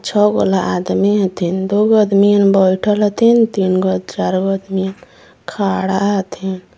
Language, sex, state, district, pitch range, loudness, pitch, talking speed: Magahi, female, Jharkhand, Palamu, 185-205 Hz, -15 LUFS, 195 Hz, 135 wpm